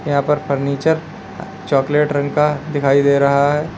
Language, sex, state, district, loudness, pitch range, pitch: Hindi, male, Uttar Pradesh, Lalitpur, -16 LUFS, 140-155 Hz, 145 Hz